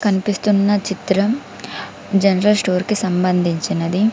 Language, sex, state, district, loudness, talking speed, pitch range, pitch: Telugu, female, Telangana, Komaram Bheem, -17 LUFS, 85 wpm, 185-205 Hz, 195 Hz